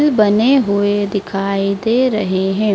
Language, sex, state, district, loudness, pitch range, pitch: Hindi, female, Madhya Pradesh, Dhar, -15 LUFS, 200-225 Hz, 205 Hz